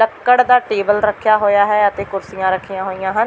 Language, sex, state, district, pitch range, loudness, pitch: Punjabi, female, Delhi, New Delhi, 190-215 Hz, -15 LUFS, 205 Hz